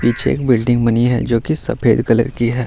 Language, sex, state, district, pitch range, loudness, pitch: Hindi, male, Bihar, Gaya, 115-125 Hz, -16 LUFS, 120 Hz